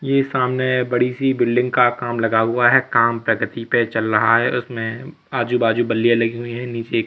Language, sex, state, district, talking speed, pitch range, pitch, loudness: Hindi, male, Madhya Pradesh, Katni, 205 wpm, 115-125 Hz, 120 Hz, -18 LUFS